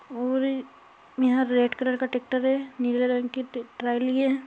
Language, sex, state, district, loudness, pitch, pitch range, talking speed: Hindi, female, Rajasthan, Churu, -26 LUFS, 255 Hz, 245-265 Hz, 160 wpm